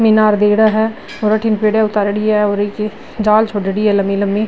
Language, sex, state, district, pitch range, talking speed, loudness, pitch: Marwari, female, Rajasthan, Nagaur, 205-215 Hz, 200 wpm, -14 LUFS, 215 Hz